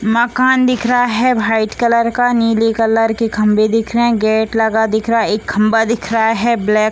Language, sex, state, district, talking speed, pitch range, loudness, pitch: Hindi, female, Bihar, Gopalganj, 225 wpm, 220-235 Hz, -14 LUFS, 225 Hz